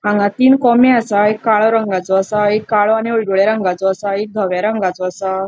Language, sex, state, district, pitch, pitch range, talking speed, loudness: Konkani, female, Goa, North and South Goa, 210 Hz, 190-220 Hz, 195 wpm, -14 LUFS